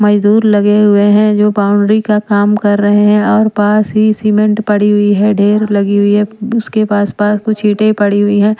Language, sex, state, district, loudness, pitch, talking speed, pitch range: Hindi, female, Maharashtra, Washim, -11 LUFS, 210 Hz, 205 wpm, 205-215 Hz